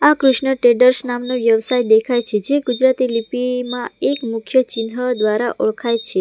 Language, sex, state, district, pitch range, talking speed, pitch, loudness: Gujarati, female, Gujarat, Valsad, 230-255 Hz, 155 wpm, 245 Hz, -17 LUFS